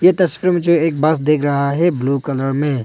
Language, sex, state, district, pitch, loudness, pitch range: Hindi, male, Arunachal Pradesh, Longding, 150 Hz, -16 LUFS, 140-170 Hz